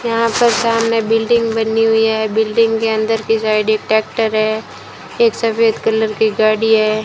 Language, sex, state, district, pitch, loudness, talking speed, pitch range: Hindi, female, Rajasthan, Bikaner, 225 Hz, -15 LUFS, 180 wpm, 220-230 Hz